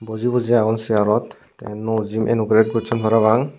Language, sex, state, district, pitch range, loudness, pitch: Chakma, male, Tripura, Unakoti, 110-115 Hz, -19 LUFS, 110 Hz